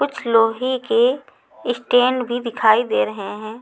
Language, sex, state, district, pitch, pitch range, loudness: Hindi, female, Chhattisgarh, Raipur, 240 Hz, 225-255 Hz, -19 LUFS